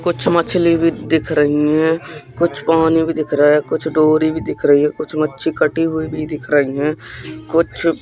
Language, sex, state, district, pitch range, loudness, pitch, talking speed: Hindi, male, Madhya Pradesh, Katni, 150-165 Hz, -16 LUFS, 155 Hz, 200 wpm